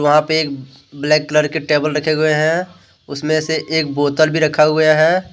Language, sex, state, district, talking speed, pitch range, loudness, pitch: Hindi, male, Jharkhand, Deoghar, 205 wpm, 150-155 Hz, -16 LUFS, 155 Hz